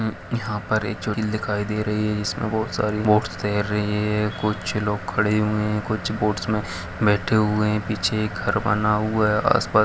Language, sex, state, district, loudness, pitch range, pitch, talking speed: Hindi, male, Chhattisgarh, Kabirdham, -23 LUFS, 105-110 Hz, 105 Hz, 200 wpm